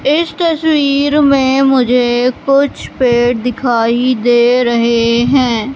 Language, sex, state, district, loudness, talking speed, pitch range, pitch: Hindi, female, Madhya Pradesh, Katni, -12 LUFS, 105 wpm, 240-275 Hz, 255 Hz